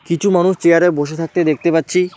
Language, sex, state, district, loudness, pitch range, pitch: Bengali, male, West Bengal, Alipurduar, -15 LUFS, 165-180 Hz, 170 Hz